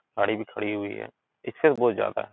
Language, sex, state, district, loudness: Hindi, male, Uttar Pradesh, Etah, -26 LUFS